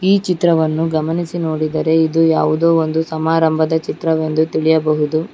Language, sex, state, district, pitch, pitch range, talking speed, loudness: Kannada, female, Karnataka, Bangalore, 160 Hz, 155-165 Hz, 110 wpm, -16 LUFS